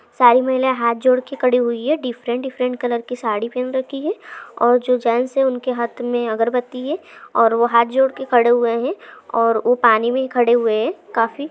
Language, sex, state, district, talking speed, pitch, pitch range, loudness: Hindi, female, Jharkhand, Sahebganj, 215 wpm, 245 Hz, 235-260 Hz, -18 LUFS